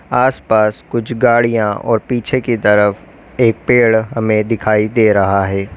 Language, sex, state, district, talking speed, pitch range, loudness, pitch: Hindi, female, Uttar Pradesh, Lalitpur, 155 wpm, 105-115 Hz, -14 LUFS, 110 Hz